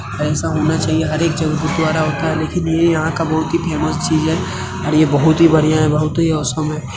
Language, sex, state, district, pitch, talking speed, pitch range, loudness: Hindi, male, Uttar Pradesh, Hamirpur, 155 Hz, 240 wpm, 155-160 Hz, -16 LUFS